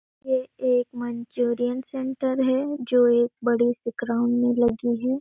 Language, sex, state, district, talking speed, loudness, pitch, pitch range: Hindi, female, Chhattisgarh, Sarguja, 160 wpm, -24 LUFS, 245 Hz, 240-260 Hz